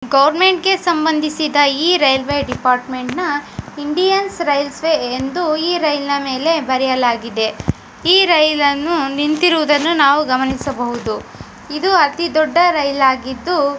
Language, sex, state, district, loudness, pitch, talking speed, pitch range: Kannada, female, Karnataka, Dharwad, -15 LUFS, 290 Hz, 110 wpm, 265-330 Hz